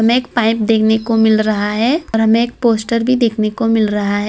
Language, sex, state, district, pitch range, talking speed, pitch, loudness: Hindi, female, Gujarat, Valsad, 215-235 Hz, 235 wpm, 225 Hz, -14 LUFS